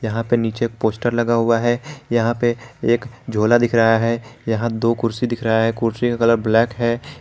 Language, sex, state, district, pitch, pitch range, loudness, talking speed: Hindi, male, Jharkhand, Garhwa, 115 Hz, 115-120 Hz, -19 LUFS, 215 wpm